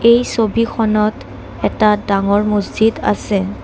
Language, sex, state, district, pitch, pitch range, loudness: Assamese, female, Assam, Kamrup Metropolitan, 215 Hz, 205-225 Hz, -16 LUFS